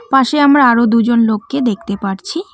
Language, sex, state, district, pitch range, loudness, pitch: Bengali, female, West Bengal, Cooch Behar, 225-280 Hz, -13 LUFS, 235 Hz